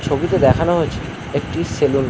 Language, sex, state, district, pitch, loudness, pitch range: Bengali, male, West Bengal, North 24 Parganas, 140 Hz, -18 LUFS, 125-165 Hz